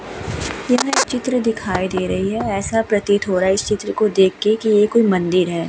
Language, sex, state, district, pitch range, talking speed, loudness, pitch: Hindi, female, Uttar Pradesh, Hamirpur, 190-225 Hz, 220 wpm, -18 LUFS, 210 Hz